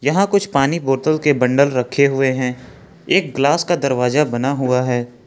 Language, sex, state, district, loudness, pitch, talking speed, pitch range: Hindi, male, Jharkhand, Ranchi, -17 LUFS, 135 Hz, 180 wpm, 125-150 Hz